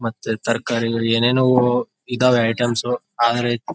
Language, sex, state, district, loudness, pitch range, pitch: Kannada, male, Karnataka, Bijapur, -19 LUFS, 115-125 Hz, 120 Hz